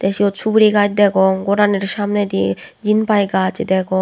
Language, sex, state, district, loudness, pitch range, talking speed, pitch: Chakma, female, Tripura, West Tripura, -16 LUFS, 190-210 Hz, 165 wpm, 205 Hz